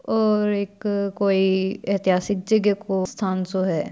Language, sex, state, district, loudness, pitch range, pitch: Marwari, female, Rajasthan, Churu, -22 LUFS, 190-210 Hz, 200 Hz